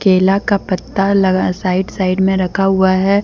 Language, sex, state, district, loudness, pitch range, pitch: Hindi, female, Jharkhand, Deoghar, -15 LUFS, 185-195 Hz, 190 Hz